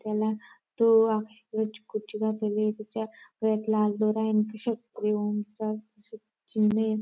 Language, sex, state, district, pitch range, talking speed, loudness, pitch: Marathi, female, Maharashtra, Dhule, 215-220 Hz, 155 wpm, -28 LUFS, 215 Hz